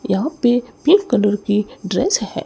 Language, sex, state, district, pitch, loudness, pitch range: Hindi, male, Chandigarh, Chandigarh, 240 Hz, -17 LUFS, 210-295 Hz